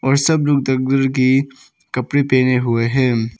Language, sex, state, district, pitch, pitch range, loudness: Hindi, male, Arunachal Pradesh, Papum Pare, 130 Hz, 125-135 Hz, -16 LUFS